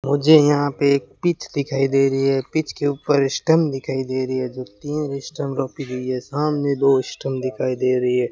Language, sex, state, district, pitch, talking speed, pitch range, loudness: Hindi, male, Rajasthan, Bikaner, 135 Hz, 215 wpm, 130-145 Hz, -20 LUFS